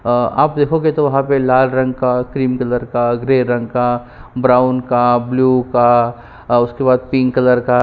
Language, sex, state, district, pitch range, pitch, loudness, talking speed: Hindi, male, Chhattisgarh, Kabirdham, 120-130 Hz, 125 Hz, -15 LUFS, 200 wpm